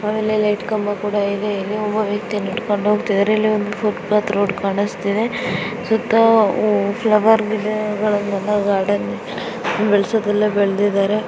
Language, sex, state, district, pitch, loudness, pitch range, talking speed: Kannada, female, Karnataka, Bijapur, 210 Hz, -18 LUFS, 205-215 Hz, 105 wpm